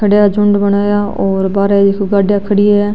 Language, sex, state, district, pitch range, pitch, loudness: Marwari, female, Rajasthan, Nagaur, 200-205 Hz, 205 Hz, -12 LUFS